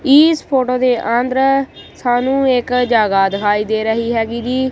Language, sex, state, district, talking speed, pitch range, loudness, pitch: Punjabi, female, Punjab, Kapurthala, 150 wpm, 225-265 Hz, -15 LUFS, 250 Hz